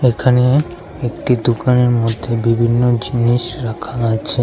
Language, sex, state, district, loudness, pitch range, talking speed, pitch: Bengali, male, Tripura, West Tripura, -16 LUFS, 115-125 Hz, 110 wpm, 120 Hz